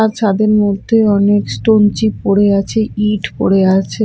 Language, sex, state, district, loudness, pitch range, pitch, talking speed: Bengali, female, Odisha, Malkangiri, -13 LUFS, 200-215 Hz, 205 Hz, 150 wpm